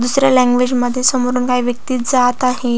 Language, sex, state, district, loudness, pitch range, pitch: Marathi, female, Maharashtra, Solapur, -15 LUFS, 245-255 Hz, 250 Hz